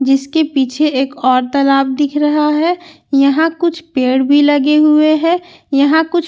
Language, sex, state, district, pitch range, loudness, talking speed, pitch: Hindi, female, Bihar, Katihar, 275-320 Hz, -13 LUFS, 160 wpm, 295 Hz